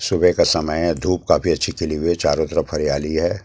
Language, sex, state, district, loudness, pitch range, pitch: Hindi, male, Delhi, New Delhi, -19 LUFS, 80-90 Hz, 85 Hz